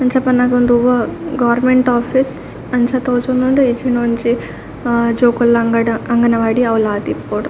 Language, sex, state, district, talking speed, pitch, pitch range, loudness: Tulu, female, Karnataka, Dakshina Kannada, 135 wpm, 245 Hz, 235-255 Hz, -15 LUFS